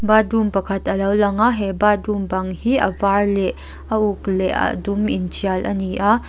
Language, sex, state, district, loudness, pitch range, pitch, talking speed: Mizo, female, Mizoram, Aizawl, -19 LUFS, 195-210 Hz, 200 Hz, 210 wpm